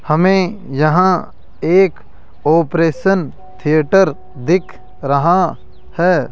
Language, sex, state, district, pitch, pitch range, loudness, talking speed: Hindi, male, Rajasthan, Jaipur, 175 Hz, 155-185 Hz, -15 LUFS, 75 wpm